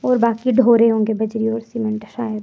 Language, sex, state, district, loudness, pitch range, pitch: Hindi, female, Himachal Pradesh, Shimla, -18 LUFS, 220-235 Hz, 225 Hz